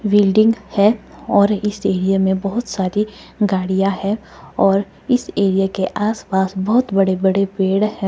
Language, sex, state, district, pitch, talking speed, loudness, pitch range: Hindi, female, Himachal Pradesh, Shimla, 200 Hz, 150 wpm, -17 LUFS, 190-210 Hz